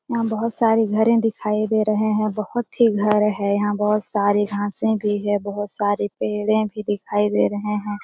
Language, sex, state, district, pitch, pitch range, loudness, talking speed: Hindi, female, Bihar, Jamui, 210 Hz, 205-220 Hz, -21 LUFS, 195 wpm